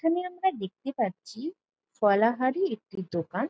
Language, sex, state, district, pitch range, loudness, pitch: Bengali, female, West Bengal, Jalpaiguri, 195-325 Hz, -29 LUFS, 230 Hz